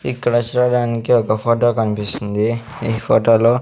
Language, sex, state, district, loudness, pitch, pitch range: Telugu, male, Andhra Pradesh, Sri Satya Sai, -17 LUFS, 115 Hz, 110-120 Hz